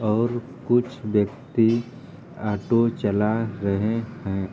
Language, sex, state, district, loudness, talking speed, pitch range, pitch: Hindi, male, Uttar Pradesh, Varanasi, -24 LUFS, 95 wpm, 105-120 Hz, 110 Hz